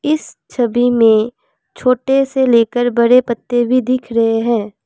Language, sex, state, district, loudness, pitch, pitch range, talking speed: Hindi, female, Assam, Kamrup Metropolitan, -14 LUFS, 245 Hz, 230-255 Hz, 150 wpm